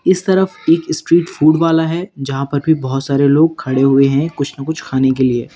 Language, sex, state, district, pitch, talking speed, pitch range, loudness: Hindi, male, Uttar Pradesh, Lalitpur, 145 Hz, 235 wpm, 135-165 Hz, -15 LUFS